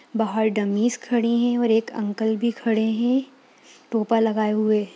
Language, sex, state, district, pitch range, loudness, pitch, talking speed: Hindi, female, Bihar, Gaya, 220-240 Hz, -22 LUFS, 225 Hz, 155 wpm